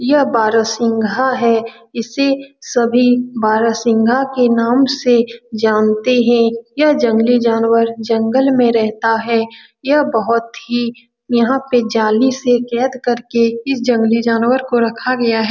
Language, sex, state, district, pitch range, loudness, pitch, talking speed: Hindi, female, Bihar, Saran, 230-250 Hz, -15 LUFS, 235 Hz, 140 wpm